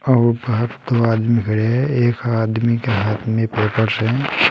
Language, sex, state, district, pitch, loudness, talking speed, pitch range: Hindi, male, Uttar Pradesh, Saharanpur, 115 Hz, -18 LUFS, 175 wpm, 110-120 Hz